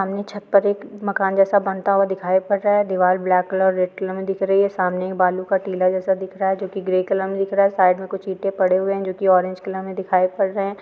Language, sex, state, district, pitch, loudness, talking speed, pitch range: Hindi, female, Andhra Pradesh, Guntur, 190 Hz, -20 LUFS, 290 wpm, 185-195 Hz